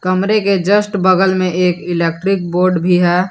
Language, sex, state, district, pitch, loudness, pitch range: Hindi, male, Jharkhand, Garhwa, 185 Hz, -14 LUFS, 180-195 Hz